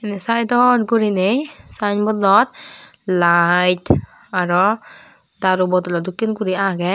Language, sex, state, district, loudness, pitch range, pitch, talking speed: Chakma, female, Tripura, Dhalai, -17 LUFS, 180-220 Hz, 195 Hz, 95 wpm